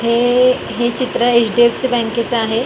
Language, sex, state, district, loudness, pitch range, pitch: Marathi, female, Maharashtra, Mumbai Suburban, -15 LUFS, 235-245 Hz, 240 Hz